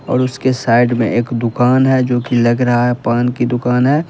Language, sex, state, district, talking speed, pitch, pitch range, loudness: Hindi, male, Uttar Pradesh, Lalitpur, 220 wpm, 125 Hz, 120-125 Hz, -14 LUFS